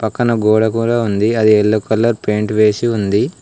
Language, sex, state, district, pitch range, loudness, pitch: Telugu, male, Telangana, Komaram Bheem, 105-115 Hz, -14 LUFS, 110 Hz